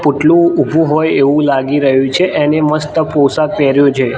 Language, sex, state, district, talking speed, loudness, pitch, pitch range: Gujarati, male, Gujarat, Gandhinagar, 170 wpm, -12 LUFS, 150 Hz, 140-155 Hz